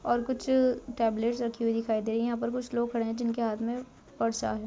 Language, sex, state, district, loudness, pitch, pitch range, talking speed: Hindi, female, Rajasthan, Nagaur, -30 LUFS, 235 Hz, 225-240 Hz, 245 wpm